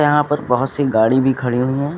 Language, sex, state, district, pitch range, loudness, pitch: Hindi, male, Uttar Pradesh, Lucknow, 125-145 Hz, -17 LUFS, 135 Hz